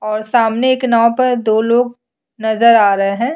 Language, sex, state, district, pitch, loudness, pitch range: Hindi, female, Chhattisgarh, Sukma, 235 Hz, -13 LUFS, 220-245 Hz